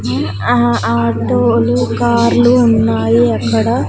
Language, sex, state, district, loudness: Telugu, female, Andhra Pradesh, Sri Satya Sai, -13 LUFS